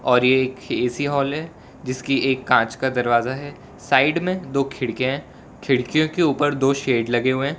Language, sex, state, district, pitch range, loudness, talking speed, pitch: Hindi, male, Gujarat, Valsad, 125-145 Hz, -21 LUFS, 200 wpm, 130 Hz